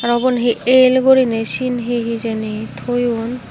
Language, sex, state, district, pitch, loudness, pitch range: Chakma, female, Tripura, Unakoti, 240 Hz, -16 LUFS, 230-255 Hz